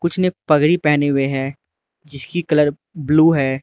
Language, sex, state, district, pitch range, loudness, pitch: Hindi, male, Arunachal Pradesh, Lower Dibang Valley, 140-170 Hz, -17 LUFS, 150 Hz